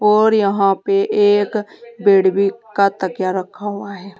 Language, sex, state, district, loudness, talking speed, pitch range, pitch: Hindi, female, Uttar Pradesh, Saharanpur, -16 LUFS, 155 wpm, 195-210 Hz, 200 Hz